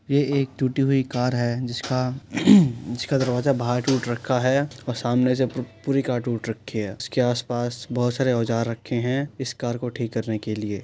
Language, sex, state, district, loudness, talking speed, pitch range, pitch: Hindi, male, Uttar Pradesh, Jyotiba Phule Nagar, -23 LUFS, 200 wpm, 120-135 Hz, 125 Hz